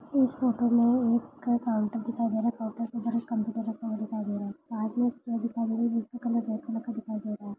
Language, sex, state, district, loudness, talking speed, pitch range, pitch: Hindi, male, Maharashtra, Solapur, -29 LUFS, 205 wpm, 220-235 Hz, 230 Hz